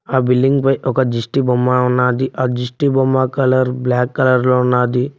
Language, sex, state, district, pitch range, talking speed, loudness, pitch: Telugu, male, Telangana, Mahabubabad, 125-130 Hz, 175 wpm, -15 LUFS, 125 Hz